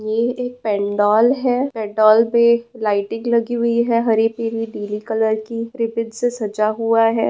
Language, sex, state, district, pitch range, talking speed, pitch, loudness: Hindi, female, Bihar, Jamui, 215-235 Hz, 170 wpm, 225 Hz, -18 LUFS